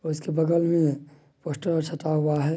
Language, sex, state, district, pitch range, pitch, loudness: Maithili, male, Bihar, Madhepura, 150-165 Hz, 155 Hz, -25 LUFS